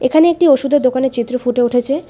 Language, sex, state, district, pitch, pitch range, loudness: Bengali, female, West Bengal, Alipurduar, 265 Hz, 245-290 Hz, -14 LUFS